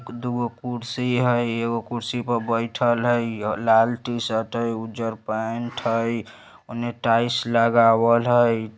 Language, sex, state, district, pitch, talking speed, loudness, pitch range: Bajjika, male, Bihar, Vaishali, 115 Hz, 145 wpm, -22 LUFS, 115-120 Hz